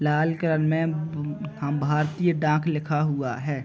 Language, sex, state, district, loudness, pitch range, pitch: Hindi, male, Chhattisgarh, Raigarh, -25 LUFS, 150-160 Hz, 150 Hz